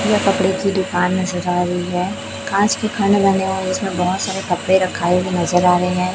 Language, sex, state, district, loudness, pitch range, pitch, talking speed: Hindi, female, Chhattisgarh, Raipur, -18 LUFS, 180-195 Hz, 185 Hz, 205 wpm